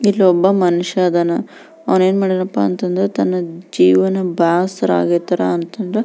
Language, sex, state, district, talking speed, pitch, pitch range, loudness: Kannada, female, Karnataka, Belgaum, 120 wpm, 185 Hz, 170-195 Hz, -16 LUFS